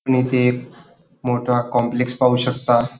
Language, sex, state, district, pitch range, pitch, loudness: Marathi, male, Maharashtra, Dhule, 120-125 Hz, 125 Hz, -19 LUFS